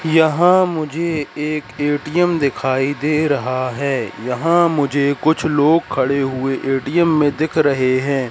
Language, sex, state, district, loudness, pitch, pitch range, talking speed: Hindi, male, Madhya Pradesh, Katni, -17 LUFS, 145 Hz, 135-160 Hz, 135 wpm